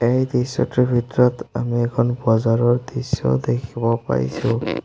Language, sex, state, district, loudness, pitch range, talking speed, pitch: Assamese, male, Assam, Sonitpur, -20 LUFS, 115-125 Hz, 110 wpm, 120 Hz